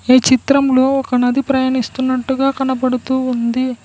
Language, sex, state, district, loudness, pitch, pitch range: Telugu, female, Telangana, Mahabubabad, -15 LUFS, 260 Hz, 255-265 Hz